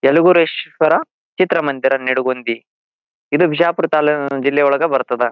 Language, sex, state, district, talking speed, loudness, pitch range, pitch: Kannada, male, Karnataka, Bijapur, 100 wpm, -16 LUFS, 130-160 Hz, 140 Hz